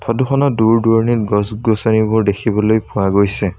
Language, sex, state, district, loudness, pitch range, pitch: Assamese, male, Assam, Sonitpur, -15 LUFS, 105-115 Hz, 110 Hz